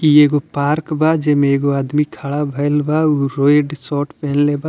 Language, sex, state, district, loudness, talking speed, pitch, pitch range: Bhojpuri, male, Bihar, Muzaffarpur, -16 LUFS, 190 wpm, 145 Hz, 140-150 Hz